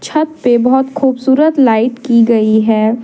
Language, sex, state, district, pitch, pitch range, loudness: Hindi, female, Jharkhand, Deoghar, 245 Hz, 225-265 Hz, -11 LUFS